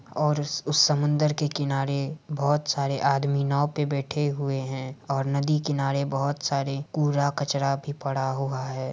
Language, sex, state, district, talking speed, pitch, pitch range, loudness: Hindi, male, Bihar, Madhepura, 160 wpm, 140 Hz, 135-145 Hz, -26 LUFS